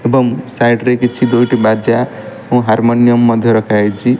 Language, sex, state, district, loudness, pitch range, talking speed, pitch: Odia, male, Odisha, Malkangiri, -12 LUFS, 115-125 Hz, 145 wpm, 120 Hz